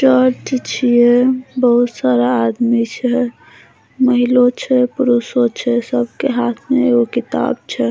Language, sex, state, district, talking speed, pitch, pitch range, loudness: Maithili, female, Bihar, Saharsa, 130 wpm, 245 Hz, 240-255 Hz, -15 LUFS